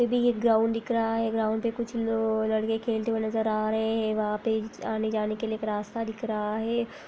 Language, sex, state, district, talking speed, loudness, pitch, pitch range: Hindi, female, Bihar, Lakhisarai, 210 wpm, -28 LUFS, 225 Hz, 220-230 Hz